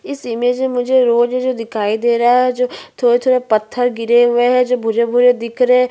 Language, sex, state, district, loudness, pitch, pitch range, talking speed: Hindi, female, Chhattisgarh, Bastar, -15 LUFS, 245 Hz, 235-250 Hz, 215 wpm